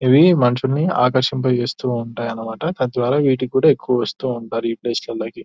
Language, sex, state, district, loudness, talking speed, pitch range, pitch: Telugu, male, Telangana, Nalgonda, -19 LUFS, 175 wpm, 120-135 Hz, 125 Hz